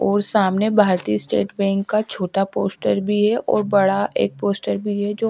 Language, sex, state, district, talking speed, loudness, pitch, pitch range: Hindi, female, Haryana, Rohtak, 190 wpm, -20 LUFS, 200 Hz, 195-210 Hz